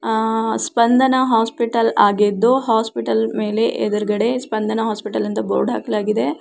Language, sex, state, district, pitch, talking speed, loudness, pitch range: Kannada, female, Karnataka, Mysore, 225 Hz, 120 wpm, -18 LUFS, 215-235 Hz